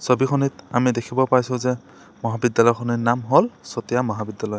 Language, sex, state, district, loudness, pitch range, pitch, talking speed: Assamese, male, Assam, Sonitpur, -21 LUFS, 115-125 Hz, 120 Hz, 130 wpm